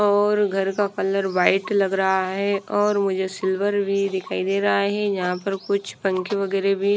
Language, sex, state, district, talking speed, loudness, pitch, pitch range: Hindi, female, Himachal Pradesh, Shimla, 190 wpm, -22 LUFS, 195 Hz, 190-200 Hz